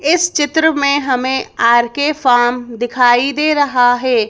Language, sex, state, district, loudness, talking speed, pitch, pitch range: Hindi, female, Madhya Pradesh, Bhopal, -13 LUFS, 140 wpm, 260 Hz, 245-290 Hz